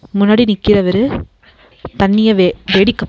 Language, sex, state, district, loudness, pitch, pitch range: Tamil, female, Tamil Nadu, Nilgiris, -13 LUFS, 205 Hz, 195-220 Hz